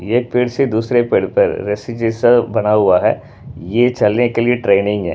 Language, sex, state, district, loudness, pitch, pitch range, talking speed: Hindi, male, Punjab, Pathankot, -15 LUFS, 115 Hz, 105-120 Hz, 210 wpm